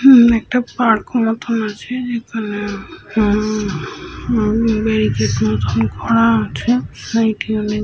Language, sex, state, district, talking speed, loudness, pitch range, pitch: Bengali, female, Jharkhand, Sahebganj, 125 wpm, -17 LUFS, 205-230 Hz, 220 Hz